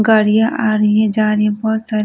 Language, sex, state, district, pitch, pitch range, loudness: Hindi, female, Delhi, New Delhi, 215 Hz, 215-220 Hz, -14 LUFS